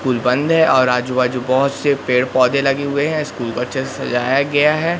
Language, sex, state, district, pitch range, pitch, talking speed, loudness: Hindi, male, Madhya Pradesh, Katni, 125-145 Hz, 135 Hz, 240 wpm, -16 LUFS